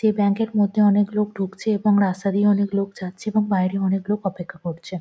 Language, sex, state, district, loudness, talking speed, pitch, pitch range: Bengali, female, West Bengal, Jhargram, -21 LUFS, 225 wpm, 200 Hz, 190-210 Hz